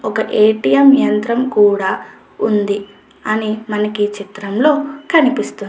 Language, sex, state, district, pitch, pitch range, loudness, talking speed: Telugu, female, Andhra Pradesh, Chittoor, 215 Hz, 205-255 Hz, -15 LUFS, 105 wpm